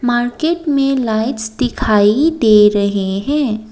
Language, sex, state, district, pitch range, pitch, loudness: Hindi, female, Assam, Kamrup Metropolitan, 215-275 Hz, 235 Hz, -14 LUFS